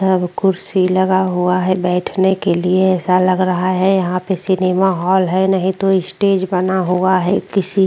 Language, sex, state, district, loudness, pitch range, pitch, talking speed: Hindi, female, Uttarakhand, Tehri Garhwal, -15 LUFS, 180-190 Hz, 185 Hz, 190 wpm